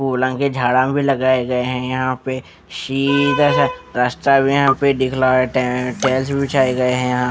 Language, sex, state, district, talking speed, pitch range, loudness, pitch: Hindi, male, Bihar, West Champaran, 190 wpm, 125-135 Hz, -17 LUFS, 130 Hz